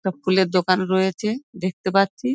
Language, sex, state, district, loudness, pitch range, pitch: Bengali, female, West Bengal, Dakshin Dinajpur, -21 LUFS, 185-195 Hz, 190 Hz